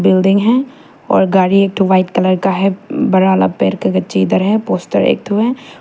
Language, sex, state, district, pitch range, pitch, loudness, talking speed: Hindi, female, Arunachal Pradesh, Papum Pare, 185-210 Hz, 190 Hz, -13 LUFS, 195 wpm